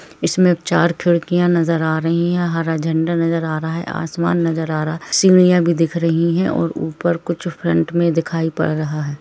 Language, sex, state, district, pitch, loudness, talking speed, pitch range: Hindi, female, Jharkhand, Jamtara, 165 Hz, -17 LUFS, 210 wpm, 160-170 Hz